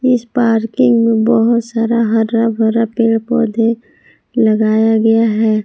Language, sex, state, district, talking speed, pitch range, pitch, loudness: Hindi, female, Jharkhand, Palamu, 125 wpm, 225-235 Hz, 225 Hz, -13 LUFS